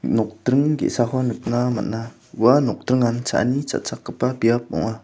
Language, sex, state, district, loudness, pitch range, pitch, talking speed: Garo, male, Meghalaya, South Garo Hills, -21 LUFS, 115-130 Hz, 120 Hz, 120 wpm